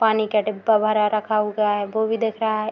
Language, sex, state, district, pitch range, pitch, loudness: Hindi, female, Bihar, Madhepura, 210-220 Hz, 215 Hz, -21 LUFS